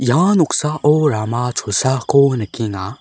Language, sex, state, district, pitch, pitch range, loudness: Garo, male, Meghalaya, South Garo Hills, 130 Hz, 110-150 Hz, -16 LUFS